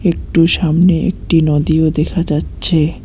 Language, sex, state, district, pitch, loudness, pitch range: Bengali, male, West Bengal, Alipurduar, 160 Hz, -14 LUFS, 155-170 Hz